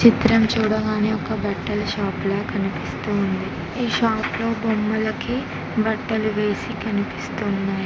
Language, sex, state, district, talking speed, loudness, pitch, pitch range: Telugu, female, Telangana, Mahabubabad, 105 wpm, -22 LUFS, 215 Hz, 205-225 Hz